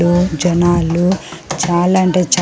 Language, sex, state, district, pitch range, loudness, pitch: Telugu, female, Andhra Pradesh, Sri Satya Sai, 175-180 Hz, -14 LUFS, 175 Hz